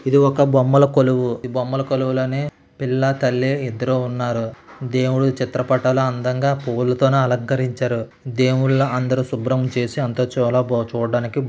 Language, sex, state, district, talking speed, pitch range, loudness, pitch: Telugu, male, Andhra Pradesh, Srikakulam, 130 wpm, 125-135 Hz, -19 LUFS, 130 Hz